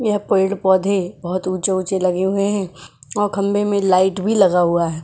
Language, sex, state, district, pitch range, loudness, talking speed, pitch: Hindi, female, Goa, North and South Goa, 185-200 Hz, -18 LUFS, 200 wpm, 190 Hz